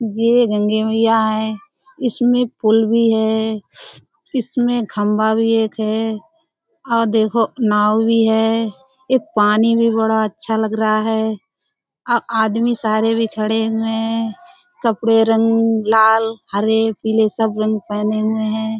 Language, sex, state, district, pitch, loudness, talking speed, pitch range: Hindi, female, Uttar Pradesh, Budaun, 225 Hz, -17 LUFS, 135 wpm, 220-230 Hz